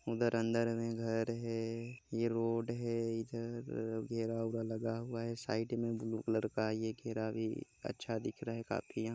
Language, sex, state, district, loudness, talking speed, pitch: Hindi, male, Chhattisgarh, Jashpur, -38 LUFS, 185 wpm, 115 Hz